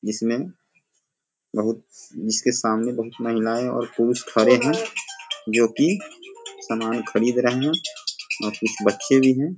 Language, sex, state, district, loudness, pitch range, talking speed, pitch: Hindi, male, Bihar, Sitamarhi, -22 LUFS, 115-180 Hz, 140 wpm, 125 Hz